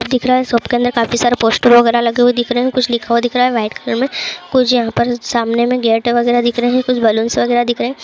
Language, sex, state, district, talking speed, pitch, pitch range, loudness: Hindi, female, Uttar Pradesh, Jyotiba Phule Nagar, 300 wpm, 240 Hz, 235-245 Hz, -14 LUFS